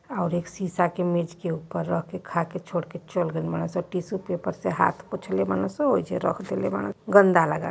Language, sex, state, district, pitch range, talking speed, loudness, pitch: Hindi, female, Uttar Pradesh, Varanasi, 165-180 Hz, 210 wpm, -26 LUFS, 175 Hz